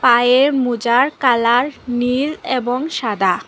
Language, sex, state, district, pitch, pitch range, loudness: Bengali, female, Assam, Hailakandi, 245 Hz, 240-270 Hz, -16 LUFS